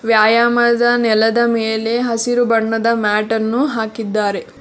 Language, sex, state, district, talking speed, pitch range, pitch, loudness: Kannada, female, Karnataka, Bangalore, 105 wpm, 220-235 Hz, 225 Hz, -15 LUFS